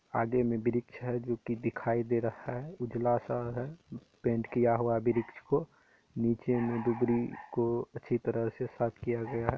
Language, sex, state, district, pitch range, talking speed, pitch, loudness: Hindi, male, Bihar, Saharsa, 115-120 Hz, 180 wpm, 120 Hz, -33 LUFS